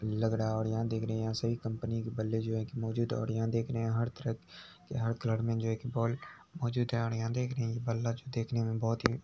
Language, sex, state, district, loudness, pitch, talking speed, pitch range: Hindi, male, Bihar, Araria, -34 LUFS, 115 Hz, 265 wpm, 110-115 Hz